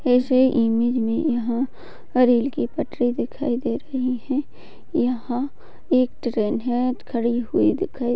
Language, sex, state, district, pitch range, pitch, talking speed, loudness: Hindi, female, Chhattisgarh, Bastar, 240-260 Hz, 250 Hz, 140 wpm, -22 LUFS